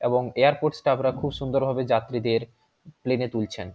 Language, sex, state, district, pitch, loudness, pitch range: Bengali, male, West Bengal, Jhargram, 130 Hz, -25 LUFS, 115-140 Hz